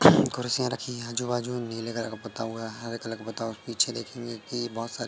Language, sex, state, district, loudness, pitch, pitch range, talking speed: Hindi, male, Madhya Pradesh, Katni, -30 LUFS, 115 Hz, 115-120 Hz, 235 wpm